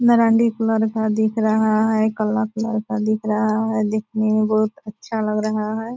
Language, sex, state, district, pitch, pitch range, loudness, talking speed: Hindi, female, Bihar, Purnia, 220 Hz, 215-225 Hz, -20 LUFS, 190 wpm